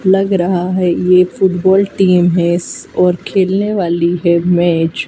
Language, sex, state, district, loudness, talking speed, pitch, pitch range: Hindi, female, Madhya Pradesh, Dhar, -13 LUFS, 165 wpm, 180 Hz, 175-190 Hz